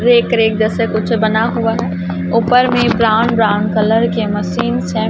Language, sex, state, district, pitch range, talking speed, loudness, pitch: Hindi, female, Chhattisgarh, Raipur, 205-230 Hz, 175 wpm, -14 LUFS, 220 Hz